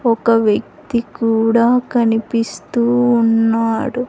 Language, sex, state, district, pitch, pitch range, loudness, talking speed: Telugu, female, Andhra Pradesh, Sri Satya Sai, 230 Hz, 225-240 Hz, -16 LUFS, 75 wpm